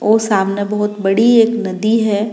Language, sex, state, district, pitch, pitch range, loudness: Rajasthani, female, Rajasthan, Nagaur, 210 Hz, 205-225 Hz, -14 LUFS